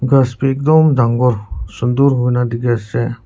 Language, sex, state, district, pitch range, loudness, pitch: Nagamese, male, Nagaland, Kohima, 120-135 Hz, -15 LUFS, 125 Hz